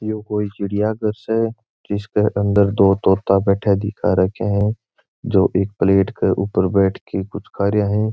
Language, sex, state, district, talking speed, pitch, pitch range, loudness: Marwari, male, Rajasthan, Churu, 175 wpm, 100 Hz, 100-105 Hz, -18 LUFS